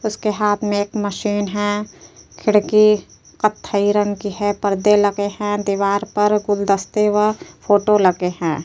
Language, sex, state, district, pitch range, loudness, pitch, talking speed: Hindi, female, Uttar Pradesh, Jyotiba Phule Nagar, 205-210 Hz, -18 LUFS, 205 Hz, 145 wpm